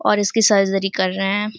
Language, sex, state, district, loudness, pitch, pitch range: Hindi, female, Uttar Pradesh, Deoria, -17 LUFS, 195 Hz, 195-210 Hz